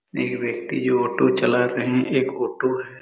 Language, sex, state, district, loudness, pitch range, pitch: Hindi, male, Chhattisgarh, Raigarh, -22 LUFS, 125-130 Hz, 125 Hz